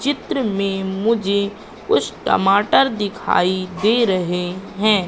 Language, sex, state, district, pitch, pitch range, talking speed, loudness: Hindi, female, Madhya Pradesh, Katni, 200 Hz, 190-220 Hz, 105 wpm, -19 LUFS